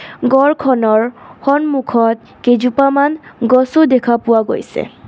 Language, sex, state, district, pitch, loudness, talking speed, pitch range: Assamese, female, Assam, Kamrup Metropolitan, 255 Hz, -14 LUFS, 95 wpm, 235-275 Hz